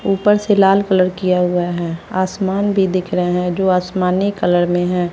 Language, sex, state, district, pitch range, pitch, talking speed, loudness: Hindi, female, Bihar, West Champaran, 180-195 Hz, 185 Hz, 200 wpm, -16 LUFS